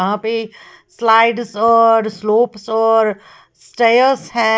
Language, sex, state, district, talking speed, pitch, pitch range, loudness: Hindi, female, Uttar Pradesh, Lalitpur, 105 wpm, 225 Hz, 220-230 Hz, -14 LUFS